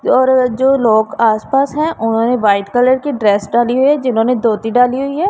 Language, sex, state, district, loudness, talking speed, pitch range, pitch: Hindi, female, Punjab, Pathankot, -13 LUFS, 235 wpm, 225-270 Hz, 245 Hz